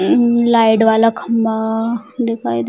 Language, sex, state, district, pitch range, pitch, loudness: Hindi, female, Bihar, Sitamarhi, 220-235 Hz, 230 Hz, -15 LUFS